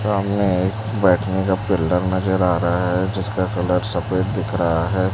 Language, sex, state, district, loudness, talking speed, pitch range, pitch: Hindi, male, Chhattisgarh, Raipur, -20 LUFS, 165 wpm, 90-100 Hz, 95 Hz